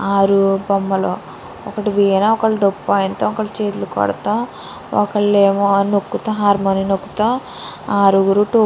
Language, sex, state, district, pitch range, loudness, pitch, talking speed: Telugu, female, Andhra Pradesh, Srikakulam, 195-210 Hz, -16 LUFS, 200 Hz, 85 wpm